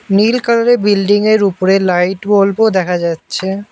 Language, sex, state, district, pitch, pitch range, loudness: Bengali, male, West Bengal, Alipurduar, 200 Hz, 190-215 Hz, -13 LUFS